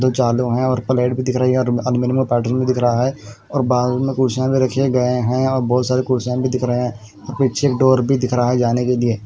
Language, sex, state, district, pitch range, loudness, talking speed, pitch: Hindi, male, Punjab, Kapurthala, 125-130 Hz, -18 LUFS, 260 wpm, 125 Hz